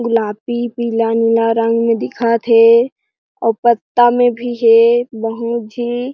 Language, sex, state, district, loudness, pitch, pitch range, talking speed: Chhattisgarhi, female, Chhattisgarh, Jashpur, -14 LUFS, 230 Hz, 230-240 Hz, 135 wpm